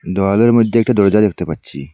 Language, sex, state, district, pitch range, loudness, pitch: Bengali, male, Assam, Hailakandi, 90-115 Hz, -14 LUFS, 100 Hz